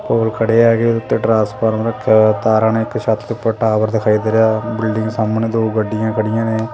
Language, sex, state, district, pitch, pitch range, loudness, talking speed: Punjabi, male, Punjab, Kapurthala, 110 Hz, 110-115 Hz, -15 LUFS, 225 wpm